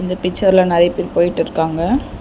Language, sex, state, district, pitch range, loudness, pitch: Tamil, female, Tamil Nadu, Chennai, 170-185 Hz, -16 LUFS, 180 Hz